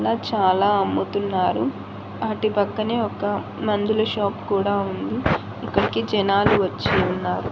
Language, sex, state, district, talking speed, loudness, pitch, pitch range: Telugu, female, Andhra Pradesh, Annamaya, 105 wpm, -22 LUFS, 200 Hz, 190-215 Hz